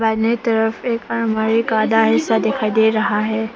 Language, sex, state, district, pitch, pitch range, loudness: Hindi, female, Arunachal Pradesh, Papum Pare, 225 Hz, 220-225 Hz, -17 LUFS